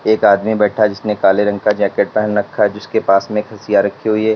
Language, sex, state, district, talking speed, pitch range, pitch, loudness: Hindi, male, Uttar Pradesh, Lalitpur, 235 wpm, 100-110 Hz, 105 Hz, -15 LUFS